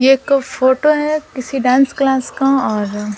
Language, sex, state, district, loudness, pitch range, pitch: Hindi, female, Bihar, Patna, -15 LUFS, 255-275 Hz, 270 Hz